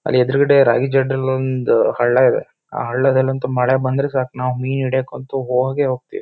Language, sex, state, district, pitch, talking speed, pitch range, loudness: Kannada, male, Karnataka, Shimoga, 130 Hz, 175 wpm, 130-140 Hz, -17 LUFS